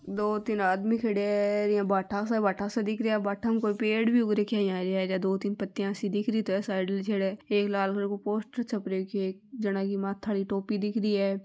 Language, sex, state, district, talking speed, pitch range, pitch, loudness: Marwari, female, Rajasthan, Nagaur, 265 wpm, 195-215 Hz, 205 Hz, -29 LUFS